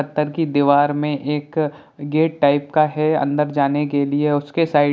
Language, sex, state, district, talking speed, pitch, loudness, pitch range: Hindi, male, Bihar, Jahanabad, 195 wpm, 145 Hz, -19 LUFS, 145-150 Hz